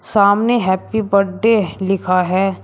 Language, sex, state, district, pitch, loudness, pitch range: Hindi, male, Uttar Pradesh, Shamli, 200 Hz, -16 LUFS, 190-220 Hz